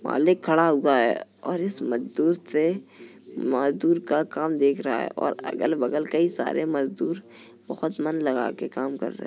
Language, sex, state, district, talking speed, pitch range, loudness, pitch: Hindi, male, Uttar Pradesh, Jalaun, 180 wpm, 140-170 Hz, -25 LUFS, 155 Hz